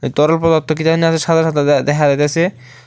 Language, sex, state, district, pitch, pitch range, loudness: Bengali, male, Tripura, West Tripura, 155 Hz, 145-165 Hz, -14 LUFS